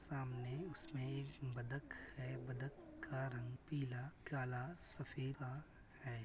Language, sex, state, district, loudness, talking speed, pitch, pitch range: Hindi, male, Uttar Pradesh, Budaun, -46 LUFS, 115 wpm, 130 Hz, 125-140 Hz